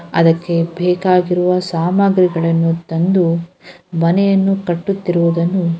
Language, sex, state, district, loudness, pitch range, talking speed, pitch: Kannada, female, Karnataka, Gulbarga, -15 LUFS, 170-185 Hz, 70 wpm, 175 Hz